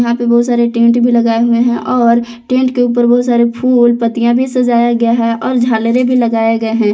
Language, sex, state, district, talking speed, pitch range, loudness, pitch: Hindi, female, Jharkhand, Palamu, 235 wpm, 235-245 Hz, -12 LUFS, 235 Hz